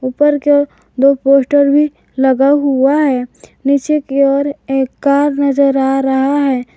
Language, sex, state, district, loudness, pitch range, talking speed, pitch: Hindi, female, Jharkhand, Garhwa, -13 LUFS, 270-285 Hz, 160 wpm, 275 Hz